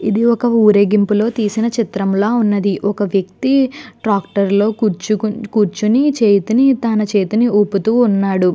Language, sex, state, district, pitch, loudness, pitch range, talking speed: Telugu, female, Andhra Pradesh, Chittoor, 210 Hz, -15 LUFS, 200-230 Hz, 120 wpm